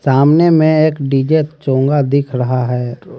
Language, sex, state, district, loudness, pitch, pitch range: Hindi, male, Haryana, Rohtak, -13 LUFS, 140 Hz, 130-155 Hz